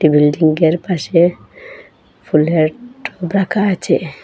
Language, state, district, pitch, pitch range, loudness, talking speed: Bengali, Assam, Hailakandi, 175 Hz, 155-200 Hz, -15 LUFS, 85 wpm